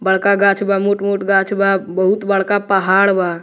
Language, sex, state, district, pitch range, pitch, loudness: Bhojpuri, male, Bihar, Muzaffarpur, 190-200 Hz, 195 Hz, -15 LUFS